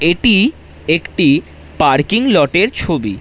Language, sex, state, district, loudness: Bengali, male, West Bengal, Jhargram, -13 LUFS